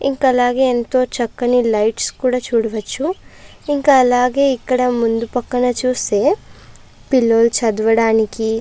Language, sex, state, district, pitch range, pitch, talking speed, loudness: Telugu, female, Andhra Pradesh, Chittoor, 230-255 Hz, 245 Hz, 105 wpm, -16 LUFS